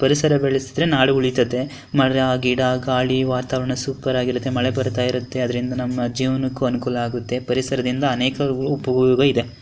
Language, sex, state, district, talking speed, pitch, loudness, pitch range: Kannada, female, Karnataka, Dharwad, 130 wpm, 130 Hz, -20 LUFS, 125-130 Hz